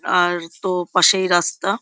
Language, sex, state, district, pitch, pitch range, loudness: Bengali, female, West Bengal, Jhargram, 180 Hz, 175-185 Hz, -18 LUFS